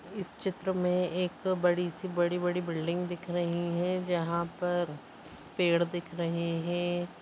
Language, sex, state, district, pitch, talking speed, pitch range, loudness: Bhojpuri, female, Uttar Pradesh, Gorakhpur, 175 Hz, 140 wpm, 170-180 Hz, -31 LUFS